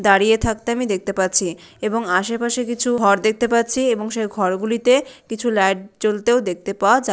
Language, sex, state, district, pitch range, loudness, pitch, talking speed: Bengali, female, West Bengal, Malda, 195-235 Hz, -19 LUFS, 220 Hz, 170 wpm